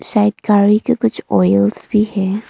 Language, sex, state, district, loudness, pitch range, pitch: Hindi, female, Arunachal Pradesh, Longding, -14 LUFS, 200-215 Hz, 210 Hz